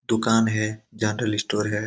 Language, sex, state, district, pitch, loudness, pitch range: Hindi, male, Bihar, Saran, 110 Hz, -24 LUFS, 105-115 Hz